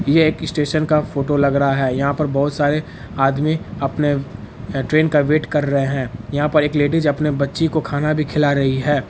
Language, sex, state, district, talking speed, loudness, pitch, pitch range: Hindi, male, Bihar, Araria, 210 wpm, -18 LUFS, 145 Hz, 140-155 Hz